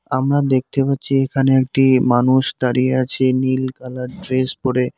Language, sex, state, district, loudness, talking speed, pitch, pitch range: Bengali, male, West Bengal, Cooch Behar, -17 LUFS, 145 wpm, 130 Hz, 130-135 Hz